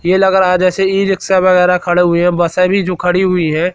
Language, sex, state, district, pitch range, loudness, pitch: Hindi, male, Madhya Pradesh, Katni, 175-190 Hz, -12 LUFS, 180 Hz